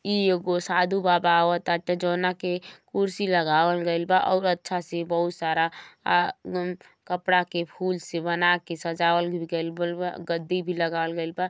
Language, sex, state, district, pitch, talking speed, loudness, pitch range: Bhojpuri, female, Uttar Pradesh, Gorakhpur, 175 Hz, 160 wpm, -25 LUFS, 170-180 Hz